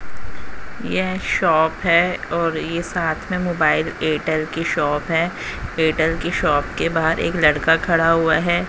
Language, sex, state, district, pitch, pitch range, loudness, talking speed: Hindi, female, Haryana, Jhajjar, 165 Hz, 160-170 Hz, -19 LUFS, 150 wpm